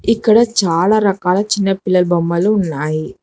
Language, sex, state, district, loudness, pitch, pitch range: Telugu, female, Telangana, Hyderabad, -15 LUFS, 195 Hz, 175-210 Hz